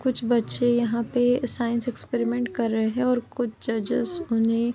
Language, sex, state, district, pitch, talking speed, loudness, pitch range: Hindi, female, Uttar Pradesh, Jyotiba Phule Nagar, 240 Hz, 175 wpm, -24 LUFS, 230-245 Hz